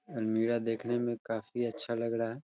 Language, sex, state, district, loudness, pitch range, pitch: Hindi, male, Uttar Pradesh, Hamirpur, -33 LUFS, 115-120 Hz, 115 Hz